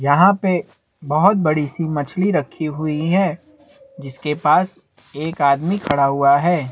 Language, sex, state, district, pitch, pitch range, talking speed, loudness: Hindi, male, Chhattisgarh, Bastar, 155 Hz, 145-190 Hz, 145 wpm, -18 LUFS